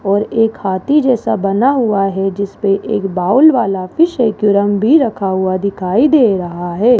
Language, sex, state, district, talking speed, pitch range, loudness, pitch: Hindi, female, Rajasthan, Jaipur, 170 wpm, 195-245 Hz, -14 LUFS, 205 Hz